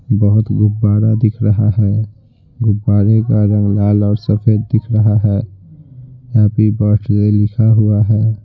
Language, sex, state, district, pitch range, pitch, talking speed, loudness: Hindi, male, Bihar, Patna, 105-110 Hz, 105 Hz, 135 wpm, -13 LUFS